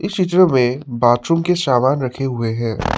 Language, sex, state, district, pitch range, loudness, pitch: Hindi, male, Assam, Sonitpur, 120-170 Hz, -17 LUFS, 130 Hz